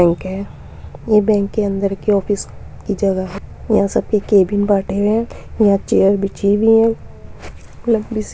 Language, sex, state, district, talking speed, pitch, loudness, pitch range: Hindi, female, Uttar Pradesh, Muzaffarnagar, 145 wpm, 205 Hz, -16 LUFS, 195-215 Hz